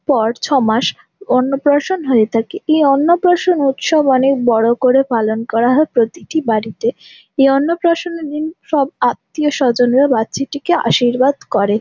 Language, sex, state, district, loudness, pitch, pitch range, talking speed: Bengali, female, West Bengal, Jhargram, -15 LUFS, 275 Hz, 235-310 Hz, 130 wpm